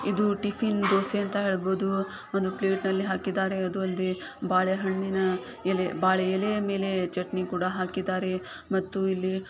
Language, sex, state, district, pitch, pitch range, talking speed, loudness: Kannada, female, Karnataka, Shimoga, 190 Hz, 185-195 Hz, 145 wpm, -28 LUFS